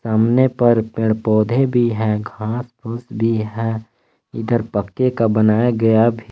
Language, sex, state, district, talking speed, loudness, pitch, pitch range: Hindi, male, Jharkhand, Palamu, 150 wpm, -18 LUFS, 115 Hz, 110-120 Hz